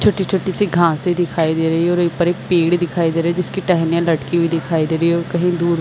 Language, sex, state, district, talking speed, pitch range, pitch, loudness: Hindi, female, Chhattisgarh, Bilaspur, 250 wpm, 165-175 Hz, 170 Hz, -17 LUFS